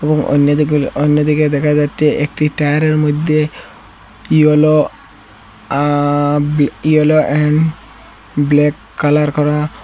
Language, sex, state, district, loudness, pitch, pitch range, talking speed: Bengali, male, Assam, Hailakandi, -14 LUFS, 150 Hz, 145-150 Hz, 85 wpm